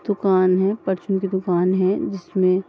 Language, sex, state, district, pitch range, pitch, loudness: Hindi, female, Uttar Pradesh, Deoria, 185-195 Hz, 190 Hz, -20 LUFS